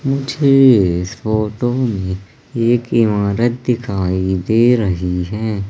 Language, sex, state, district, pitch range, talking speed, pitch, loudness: Hindi, male, Madhya Pradesh, Katni, 95-120 Hz, 105 wpm, 110 Hz, -16 LUFS